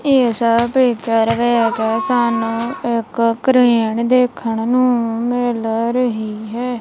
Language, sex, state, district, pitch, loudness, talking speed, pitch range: Punjabi, female, Punjab, Kapurthala, 235 Hz, -16 LUFS, 95 wpm, 225-245 Hz